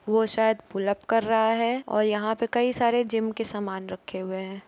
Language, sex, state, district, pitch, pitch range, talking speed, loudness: Hindi, female, Uttar Pradesh, Jalaun, 220 Hz, 200-230 Hz, 245 wpm, -26 LUFS